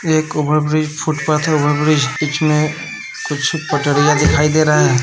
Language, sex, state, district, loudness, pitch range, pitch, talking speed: Hindi, male, Bihar, Saran, -15 LUFS, 150-155 Hz, 150 Hz, 190 wpm